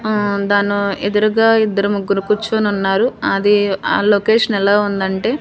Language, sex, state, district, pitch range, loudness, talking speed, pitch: Telugu, female, Andhra Pradesh, Manyam, 200-215 Hz, -15 LUFS, 120 wpm, 205 Hz